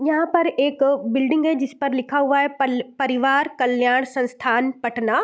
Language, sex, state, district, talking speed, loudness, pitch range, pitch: Hindi, female, Bihar, East Champaran, 160 wpm, -20 LUFS, 250-285 Hz, 270 Hz